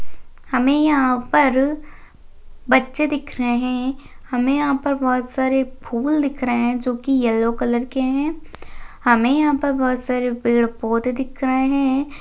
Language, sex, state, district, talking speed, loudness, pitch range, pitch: Hindi, female, Maharashtra, Pune, 155 wpm, -19 LUFS, 245-280 Hz, 260 Hz